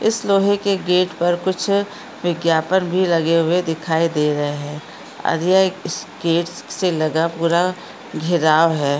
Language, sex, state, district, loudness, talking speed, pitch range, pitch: Hindi, female, Maharashtra, Solapur, -19 LUFS, 140 wpm, 160-185 Hz, 170 Hz